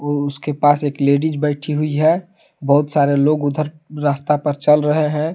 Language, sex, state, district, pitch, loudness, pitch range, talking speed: Hindi, male, Jharkhand, Palamu, 150 Hz, -17 LUFS, 145-155 Hz, 190 wpm